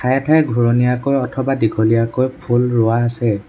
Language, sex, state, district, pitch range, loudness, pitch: Assamese, male, Assam, Sonitpur, 115-130 Hz, -16 LUFS, 120 Hz